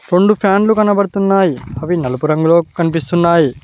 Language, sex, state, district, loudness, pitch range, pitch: Telugu, male, Telangana, Mahabubabad, -14 LUFS, 155-195 Hz, 175 Hz